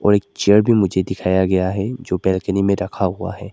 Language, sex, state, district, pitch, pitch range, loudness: Hindi, male, Arunachal Pradesh, Lower Dibang Valley, 100 Hz, 95-100 Hz, -18 LUFS